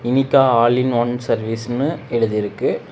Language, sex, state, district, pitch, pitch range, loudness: Tamil, male, Tamil Nadu, Namakkal, 120 Hz, 115-130 Hz, -18 LUFS